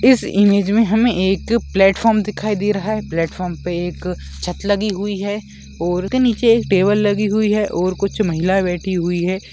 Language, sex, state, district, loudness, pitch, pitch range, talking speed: Hindi, female, Bihar, Bhagalpur, -17 LUFS, 200 Hz, 180-210 Hz, 195 wpm